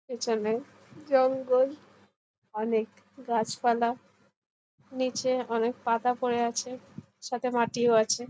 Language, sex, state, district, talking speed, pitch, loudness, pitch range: Bengali, female, West Bengal, Jhargram, 95 wpm, 240 Hz, -28 LUFS, 230-255 Hz